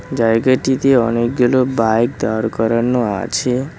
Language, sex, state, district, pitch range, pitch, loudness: Bengali, male, West Bengal, Cooch Behar, 115-130 Hz, 120 Hz, -16 LUFS